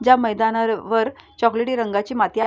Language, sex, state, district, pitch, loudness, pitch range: Marathi, female, Maharashtra, Solapur, 225 Hz, -20 LUFS, 225-235 Hz